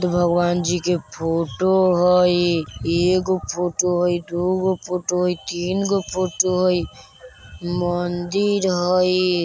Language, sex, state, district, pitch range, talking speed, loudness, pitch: Bajjika, male, Bihar, Vaishali, 175-185 Hz, 125 wpm, -20 LUFS, 180 Hz